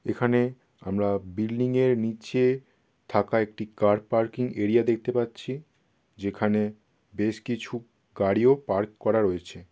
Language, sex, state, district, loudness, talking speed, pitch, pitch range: Bengali, male, West Bengal, Kolkata, -26 LUFS, 115 wpm, 115 Hz, 105-125 Hz